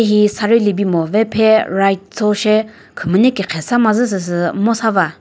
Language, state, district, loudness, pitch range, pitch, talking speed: Chakhesang, Nagaland, Dimapur, -15 LUFS, 195-220 Hz, 210 Hz, 205 wpm